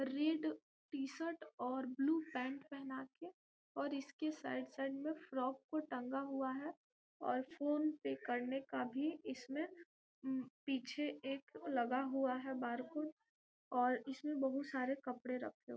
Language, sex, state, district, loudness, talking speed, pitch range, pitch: Hindi, female, Bihar, Gopalganj, -43 LUFS, 145 wpm, 255-305 Hz, 270 Hz